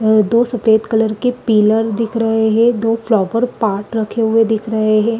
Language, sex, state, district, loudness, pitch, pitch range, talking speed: Hindi, female, Chhattisgarh, Rajnandgaon, -15 LUFS, 225 Hz, 220-230 Hz, 195 wpm